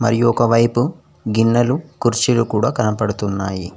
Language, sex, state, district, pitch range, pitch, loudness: Telugu, male, Telangana, Mahabubabad, 105-120 Hz, 115 Hz, -17 LUFS